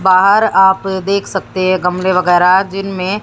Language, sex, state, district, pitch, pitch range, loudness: Hindi, female, Haryana, Jhajjar, 190 Hz, 185-195 Hz, -13 LUFS